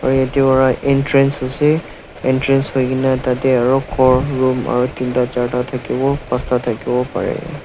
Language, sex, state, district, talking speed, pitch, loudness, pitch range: Nagamese, male, Nagaland, Dimapur, 140 wpm, 130 Hz, -16 LUFS, 125-135 Hz